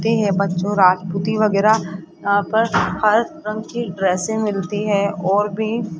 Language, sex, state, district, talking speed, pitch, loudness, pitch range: Hindi, female, Rajasthan, Jaipur, 140 wpm, 205 Hz, -19 LUFS, 190-220 Hz